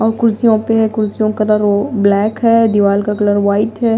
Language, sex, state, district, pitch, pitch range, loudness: Hindi, female, Maharashtra, Mumbai Suburban, 215 Hz, 205-225 Hz, -13 LUFS